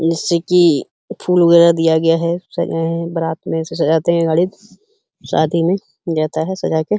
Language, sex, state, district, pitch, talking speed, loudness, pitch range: Hindi, male, Uttar Pradesh, Hamirpur, 170 Hz, 190 wpm, -16 LUFS, 160-175 Hz